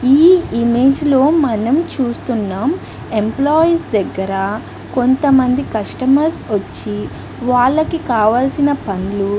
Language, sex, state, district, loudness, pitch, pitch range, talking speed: Telugu, female, Andhra Pradesh, Guntur, -15 LUFS, 250 Hz, 210-285 Hz, 90 wpm